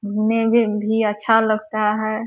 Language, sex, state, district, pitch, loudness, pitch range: Hindi, female, Bihar, Purnia, 215 Hz, -19 LUFS, 210-225 Hz